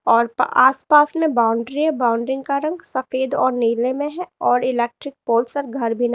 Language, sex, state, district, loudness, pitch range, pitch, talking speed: Hindi, female, Uttar Pradesh, Lalitpur, -19 LUFS, 235-290 Hz, 260 Hz, 225 wpm